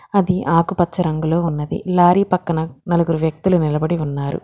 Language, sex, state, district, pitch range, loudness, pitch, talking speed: Telugu, female, Telangana, Hyderabad, 160-180 Hz, -18 LUFS, 170 Hz, 135 wpm